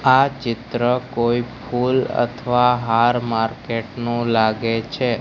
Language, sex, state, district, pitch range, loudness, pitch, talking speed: Gujarati, male, Gujarat, Gandhinagar, 115-125 Hz, -20 LUFS, 120 Hz, 115 wpm